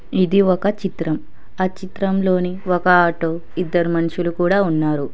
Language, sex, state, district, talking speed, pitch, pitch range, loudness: Telugu, female, Telangana, Hyderabad, 130 wpm, 180 Hz, 170-190 Hz, -19 LUFS